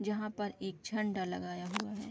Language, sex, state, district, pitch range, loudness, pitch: Hindi, female, Bihar, East Champaran, 190-215 Hz, -38 LUFS, 210 Hz